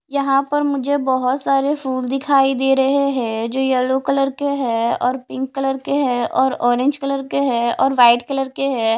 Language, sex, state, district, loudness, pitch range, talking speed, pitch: Hindi, female, Himachal Pradesh, Shimla, -18 LUFS, 255-275 Hz, 200 wpm, 270 Hz